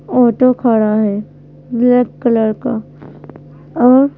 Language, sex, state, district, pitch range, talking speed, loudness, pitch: Hindi, female, Madhya Pradesh, Bhopal, 220-255 Hz, 100 wpm, -14 LUFS, 240 Hz